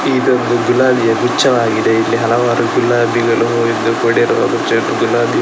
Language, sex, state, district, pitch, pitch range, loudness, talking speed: Kannada, male, Karnataka, Dakshina Kannada, 120 Hz, 115-120 Hz, -13 LUFS, 120 wpm